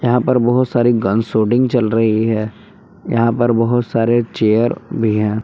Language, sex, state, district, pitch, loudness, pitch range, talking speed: Hindi, male, Jharkhand, Palamu, 115 Hz, -15 LUFS, 110-120 Hz, 175 wpm